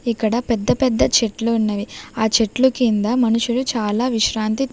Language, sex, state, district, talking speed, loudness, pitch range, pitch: Telugu, female, Andhra Pradesh, Sri Satya Sai, 140 wpm, -18 LUFS, 220-245 Hz, 230 Hz